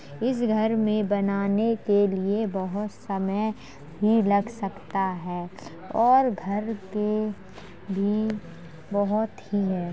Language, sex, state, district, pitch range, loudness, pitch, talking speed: Hindi, female, Uttar Pradesh, Jalaun, 190-215 Hz, -26 LUFS, 205 Hz, 115 wpm